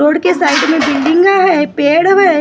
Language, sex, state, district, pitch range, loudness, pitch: Hindi, female, Maharashtra, Gondia, 295-365 Hz, -10 LUFS, 330 Hz